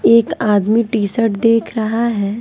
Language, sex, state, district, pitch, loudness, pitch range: Hindi, female, Bihar, Patna, 225 Hz, -15 LUFS, 210-230 Hz